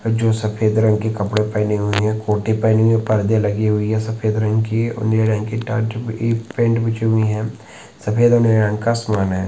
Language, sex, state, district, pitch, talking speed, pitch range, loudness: Hindi, male, Chhattisgarh, Sukma, 110 Hz, 160 wpm, 105-115 Hz, -18 LUFS